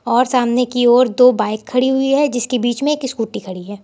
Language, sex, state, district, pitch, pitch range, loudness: Hindi, female, Uttar Pradesh, Lucknow, 245 Hz, 235-255 Hz, -15 LUFS